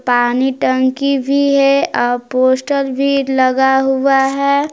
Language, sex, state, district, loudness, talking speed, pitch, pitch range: Hindi, female, Jharkhand, Palamu, -14 LUFS, 125 wpm, 270 Hz, 260-275 Hz